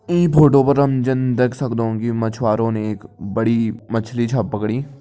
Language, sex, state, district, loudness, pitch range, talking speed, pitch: Kumaoni, male, Uttarakhand, Tehri Garhwal, -18 LUFS, 110-135 Hz, 180 wpm, 115 Hz